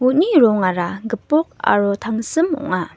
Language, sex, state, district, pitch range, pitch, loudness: Garo, female, Meghalaya, West Garo Hills, 205-310 Hz, 230 Hz, -18 LUFS